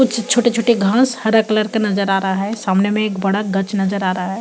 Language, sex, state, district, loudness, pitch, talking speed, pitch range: Hindi, female, Chhattisgarh, Kabirdham, -17 LUFS, 210 Hz, 260 wpm, 195-230 Hz